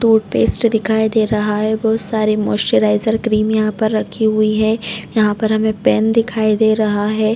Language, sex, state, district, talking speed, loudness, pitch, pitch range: Hindi, female, Chhattisgarh, Raigarh, 180 wpm, -15 LUFS, 220 Hz, 215-220 Hz